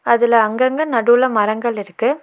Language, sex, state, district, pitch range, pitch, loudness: Tamil, female, Tamil Nadu, Nilgiris, 220-255 Hz, 235 Hz, -16 LUFS